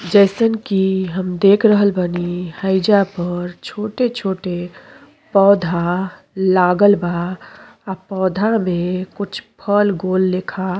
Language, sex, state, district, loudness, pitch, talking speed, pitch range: Bhojpuri, female, Uttar Pradesh, Deoria, -17 LUFS, 190 Hz, 110 wpm, 180-205 Hz